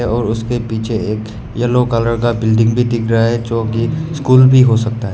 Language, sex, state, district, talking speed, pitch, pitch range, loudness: Hindi, male, Meghalaya, West Garo Hills, 210 wpm, 115 Hz, 115-120 Hz, -14 LUFS